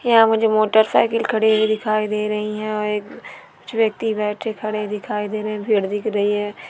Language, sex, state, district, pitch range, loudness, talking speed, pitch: Hindi, female, West Bengal, Dakshin Dinajpur, 210-220 Hz, -20 LUFS, 215 wpm, 215 Hz